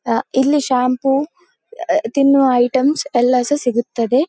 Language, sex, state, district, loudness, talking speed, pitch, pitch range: Kannada, female, Karnataka, Dakshina Kannada, -16 LUFS, 140 wpm, 265 Hz, 250-290 Hz